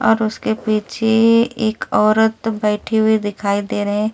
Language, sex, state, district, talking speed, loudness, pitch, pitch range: Hindi, female, Delhi, New Delhi, 175 wpm, -17 LUFS, 220 Hz, 210-225 Hz